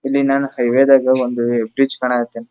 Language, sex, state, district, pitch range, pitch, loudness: Kannada, male, Karnataka, Dharwad, 120-135 Hz, 130 Hz, -16 LUFS